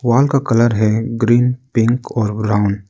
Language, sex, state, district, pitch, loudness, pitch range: Hindi, male, Arunachal Pradesh, Lower Dibang Valley, 115 Hz, -16 LUFS, 110-120 Hz